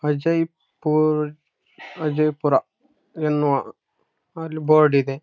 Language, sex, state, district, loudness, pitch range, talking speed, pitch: Kannada, male, Karnataka, Raichur, -21 LUFS, 145-155 Hz, 205 wpm, 155 Hz